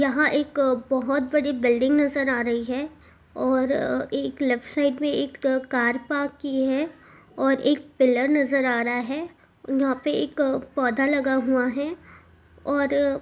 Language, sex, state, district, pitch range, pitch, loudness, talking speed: Hindi, female, Rajasthan, Churu, 260-285 Hz, 275 Hz, -23 LUFS, 160 wpm